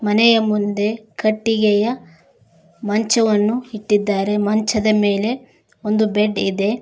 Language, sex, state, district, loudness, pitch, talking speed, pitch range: Kannada, female, Karnataka, Koppal, -18 LUFS, 210 Hz, 90 wpm, 205-220 Hz